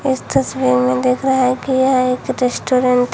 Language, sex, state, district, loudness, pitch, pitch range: Hindi, female, Uttar Pradesh, Shamli, -16 LUFS, 255 Hz, 245-260 Hz